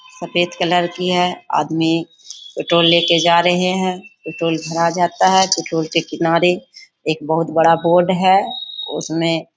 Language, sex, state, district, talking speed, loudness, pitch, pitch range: Hindi, female, Bihar, Bhagalpur, 155 wpm, -16 LUFS, 170 Hz, 165-185 Hz